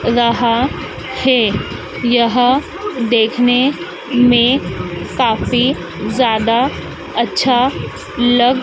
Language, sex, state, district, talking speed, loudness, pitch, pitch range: Hindi, female, Madhya Pradesh, Dhar, 65 wpm, -15 LUFS, 245 Hz, 235-255 Hz